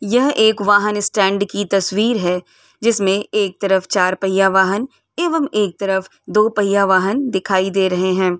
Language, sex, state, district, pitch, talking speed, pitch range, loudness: Hindi, female, Uttar Pradesh, Varanasi, 200 Hz, 165 wpm, 190-210 Hz, -17 LUFS